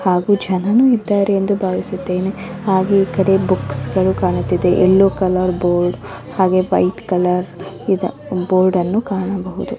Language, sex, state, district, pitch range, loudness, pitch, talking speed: Kannada, female, Karnataka, Dharwad, 180-195 Hz, -16 LUFS, 185 Hz, 130 wpm